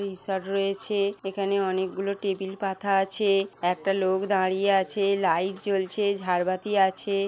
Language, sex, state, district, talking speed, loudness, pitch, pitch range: Bengali, female, West Bengal, Kolkata, 130 wpm, -26 LUFS, 195 Hz, 190-200 Hz